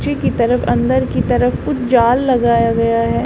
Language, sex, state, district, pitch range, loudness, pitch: Hindi, female, Uttar Pradesh, Shamli, 230-250 Hz, -15 LUFS, 235 Hz